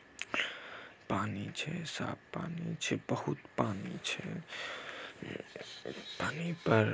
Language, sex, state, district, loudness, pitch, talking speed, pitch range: Maithili, male, Bihar, Samastipur, -38 LUFS, 165 Hz, 95 wpm, 145-170 Hz